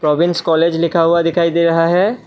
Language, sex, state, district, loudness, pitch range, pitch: Hindi, male, Assam, Kamrup Metropolitan, -14 LUFS, 165-170 Hz, 170 Hz